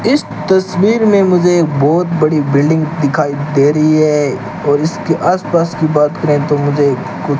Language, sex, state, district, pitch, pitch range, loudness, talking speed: Hindi, male, Rajasthan, Bikaner, 155 Hz, 145-175 Hz, -13 LUFS, 180 wpm